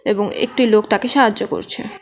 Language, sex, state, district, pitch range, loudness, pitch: Bengali, female, West Bengal, Alipurduar, 210-250 Hz, -16 LUFS, 235 Hz